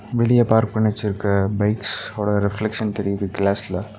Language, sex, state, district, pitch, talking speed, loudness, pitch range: Tamil, male, Tamil Nadu, Nilgiris, 105 Hz, 135 wpm, -21 LUFS, 100-110 Hz